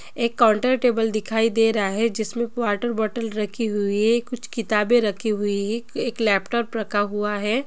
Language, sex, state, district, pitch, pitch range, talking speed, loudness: Hindi, female, Bihar, Gopalganj, 225 Hz, 210-235 Hz, 170 wpm, -22 LUFS